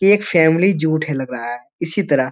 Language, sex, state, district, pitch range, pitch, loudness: Hindi, male, Bihar, Jamui, 135-190 Hz, 160 Hz, -17 LUFS